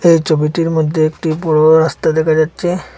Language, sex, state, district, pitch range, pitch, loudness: Bengali, male, Assam, Hailakandi, 155-165 Hz, 160 Hz, -13 LUFS